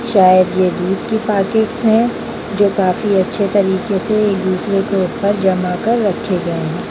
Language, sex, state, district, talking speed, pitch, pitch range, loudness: Hindi, female, Bihar, Jamui, 175 wpm, 200 Hz, 190-215 Hz, -15 LUFS